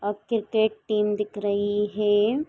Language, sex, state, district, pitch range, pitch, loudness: Hindi, female, Jharkhand, Sahebganj, 205-220 Hz, 210 Hz, -24 LUFS